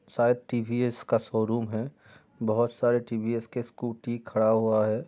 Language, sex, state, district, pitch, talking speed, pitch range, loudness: Hindi, male, Chhattisgarh, Raigarh, 115 Hz, 155 wpm, 110-120 Hz, -28 LUFS